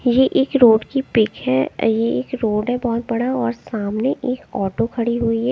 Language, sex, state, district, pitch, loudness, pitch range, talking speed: Hindi, female, Chandigarh, Chandigarh, 235 Hz, -19 LUFS, 225-255 Hz, 205 wpm